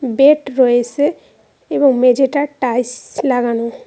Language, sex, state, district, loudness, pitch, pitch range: Bengali, female, West Bengal, Cooch Behar, -15 LUFS, 255 Hz, 245-275 Hz